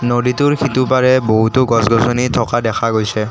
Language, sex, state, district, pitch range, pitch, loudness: Assamese, male, Assam, Kamrup Metropolitan, 115-130 Hz, 120 Hz, -14 LUFS